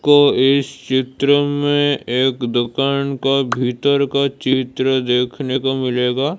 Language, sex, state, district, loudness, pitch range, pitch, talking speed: Hindi, male, Odisha, Malkangiri, -17 LUFS, 130-140 Hz, 135 Hz, 120 wpm